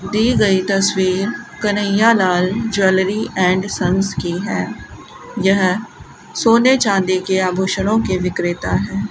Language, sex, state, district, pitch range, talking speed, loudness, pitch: Hindi, female, Rajasthan, Bikaner, 185-210 Hz, 120 wpm, -16 LUFS, 195 Hz